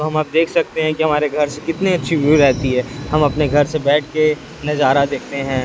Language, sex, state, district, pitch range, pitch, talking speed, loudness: Hindi, male, Chhattisgarh, Raipur, 140-155 Hz, 150 Hz, 245 wpm, -17 LUFS